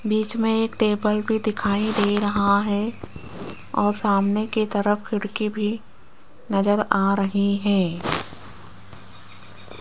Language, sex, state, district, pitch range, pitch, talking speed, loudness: Hindi, female, Rajasthan, Jaipur, 195-215 Hz, 205 Hz, 115 wpm, -22 LUFS